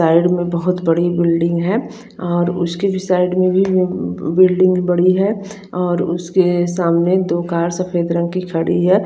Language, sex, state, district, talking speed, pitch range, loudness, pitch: Hindi, female, Chandigarh, Chandigarh, 160 wpm, 170-185 Hz, -16 LUFS, 180 Hz